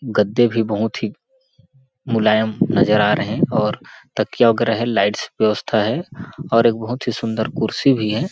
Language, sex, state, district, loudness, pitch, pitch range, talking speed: Hindi, male, Chhattisgarh, Sarguja, -18 LUFS, 115 Hz, 110-130 Hz, 175 wpm